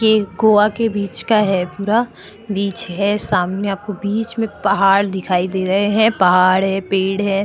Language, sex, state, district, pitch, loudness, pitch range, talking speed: Hindi, female, Chhattisgarh, Korba, 200 Hz, -17 LUFS, 190-210 Hz, 175 wpm